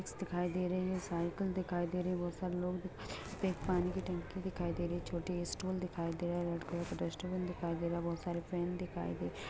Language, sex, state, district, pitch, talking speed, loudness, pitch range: Hindi, female, Bihar, Gopalganj, 175 Hz, 245 wpm, -39 LUFS, 170-180 Hz